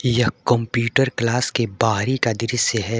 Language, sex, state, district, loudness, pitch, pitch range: Hindi, male, Jharkhand, Garhwa, -20 LUFS, 120 Hz, 115-125 Hz